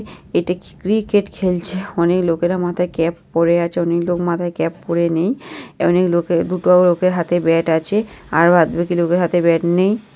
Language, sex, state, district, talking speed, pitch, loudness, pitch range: Bengali, female, West Bengal, North 24 Parganas, 175 wpm, 175 Hz, -17 LUFS, 170-185 Hz